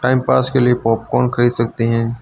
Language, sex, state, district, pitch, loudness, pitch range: Hindi, male, Uttar Pradesh, Lucknow, 120 Hz, -16 LUFS, 115-125 Hz